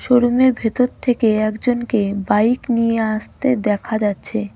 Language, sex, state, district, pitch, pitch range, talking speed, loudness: Bengali, female, West Bengal, Cooch Behar, 225 Hz, 215-245 Hz, 120 wpm, -18 LUFS